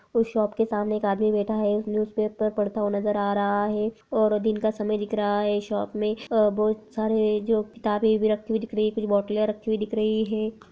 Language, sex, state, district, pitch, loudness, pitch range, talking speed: Hindi, female, Uttar Pradesh, Jyotiba Phule Nagar, 215 Hz, -25 LUFS, 210-220 Hz, 240 wpm